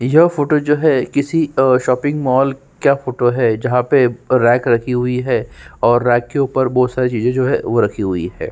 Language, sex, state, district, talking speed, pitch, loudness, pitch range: Hindi, male, Uttarakhand, Tehri Garhwal, 210 wpm, 130 Hz, -16 LUFS, 120-140 Hz